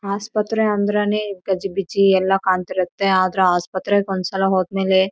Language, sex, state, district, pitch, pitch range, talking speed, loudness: Kannada, female, Karnataka, Raichur, 195 Hz, 185-200 Hz, 115 wpm, -19 LUFS